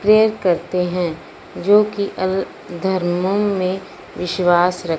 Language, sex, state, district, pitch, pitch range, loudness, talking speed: Hindi, female, Punjab, Fazilka, 185 Hz, 180-200 Hz, -18 LUFS, 120 wpm